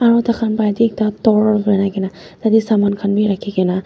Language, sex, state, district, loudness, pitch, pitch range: Nagamese, female, Nagaland, Dimapur, -16 LUFS, 210 Hz, 200-220 Hz